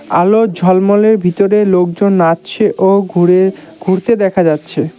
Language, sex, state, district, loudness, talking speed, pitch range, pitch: Bengali, male, West Bengal, Cooch Behar, -11 LUFS, 120 wpm, 175-205 Hz, 190 Hz